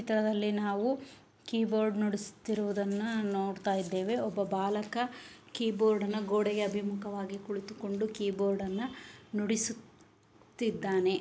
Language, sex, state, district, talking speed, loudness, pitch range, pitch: Kannada, female, Karnataka, Bellary, 105 wpm, -33 LUFS, 200-220 Hz, 210 Hz